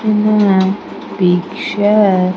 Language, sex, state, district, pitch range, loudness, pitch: English, female, Andhra Pradesh, Sri Satya Sai, 185-210 Hz, -13 LUFS, 200 Hz